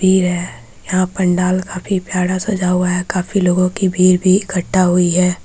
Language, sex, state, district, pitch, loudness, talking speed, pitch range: Hindi, female, Bihar, Vaishali, 185 Hz, -16 LUFS, 185 wpm, 180-185 Hz